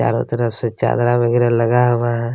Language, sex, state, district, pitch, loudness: Hindi, male, Chhattisgarh, Kabirdham, 120 Hz, -17 LUFS